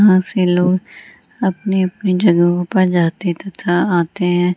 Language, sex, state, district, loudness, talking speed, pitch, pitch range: Hindi, female, Bihar, Gaya, -16 LUFS, 145 wpm, 180 Hz, 175-190 Hz